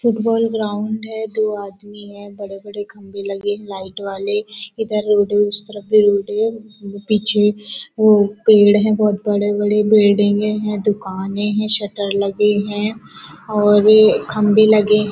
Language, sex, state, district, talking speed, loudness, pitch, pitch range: Hindi, female, Maharashtra, Nagpur, 155 wpm, -16 LUFS, 210 Hz, 205-215 Hz